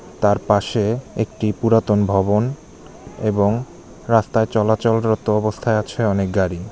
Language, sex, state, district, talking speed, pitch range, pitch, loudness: Bengali, male, West Bengal, Jhargram, 105 wpm, 105-115 Hz, 110 Hz, -19 LUFS